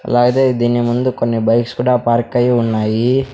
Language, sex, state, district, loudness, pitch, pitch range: Telugu, male, Andhra Pradesh, Sri Satya Sai, -15 LUFS, 120 Hz, 115-125 Hz